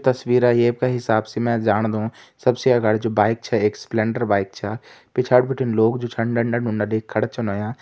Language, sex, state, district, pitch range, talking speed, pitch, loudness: Garhwali, male, Uttarakhand, Tehri Garhwal, 110-125 Hz, 205 wpm, 115 Hz, -20 LUFS